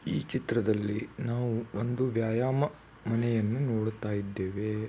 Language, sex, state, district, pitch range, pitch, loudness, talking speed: Kannada, male, Karnataka, Belgaum, 105-120 Hz, 115 Hz, -31 LUFS, 110 wpm